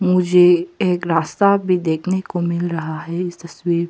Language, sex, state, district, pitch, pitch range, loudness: Hindi, female, Arunachal Pradesh, Papum Pare, 175 Hz, 170-180 Hz, -18 LUFS